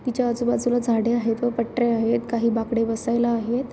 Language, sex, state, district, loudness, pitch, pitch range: Marathi, female, Maharashtra, Sindhudurg, -23 LUFS, 235 Hz, 230-240 Hz